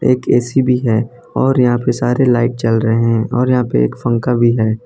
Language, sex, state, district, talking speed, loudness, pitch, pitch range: Hindi, male, Gujarat, Valsad, 235 wpm, -14 LUFS, 120 Hz, 115-125 Hz